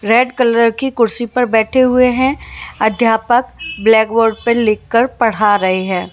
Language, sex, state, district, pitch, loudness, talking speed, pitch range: Hindi, female, Maharashtra, Mumbai Suburban, 230 Hz, -13 LUFS, 155 wpm, 220-250 Hz